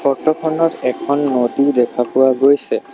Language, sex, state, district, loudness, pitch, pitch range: Assamese, male, Assam, Sonitpur, -16 LUFS, 140 Hz, 125-145 Hz